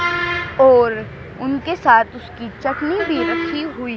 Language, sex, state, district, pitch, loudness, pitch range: Hindi, male, Haryana, Charkhi Dadri, 315 Hz, -17 LUFS, 250-345 Hz